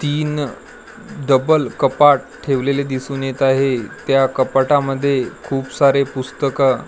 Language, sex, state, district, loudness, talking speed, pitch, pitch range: Marathi, male, Maharashtra, Gondia, -17 LUFS, 115 wpm, 135 Hz, 135-140 Hz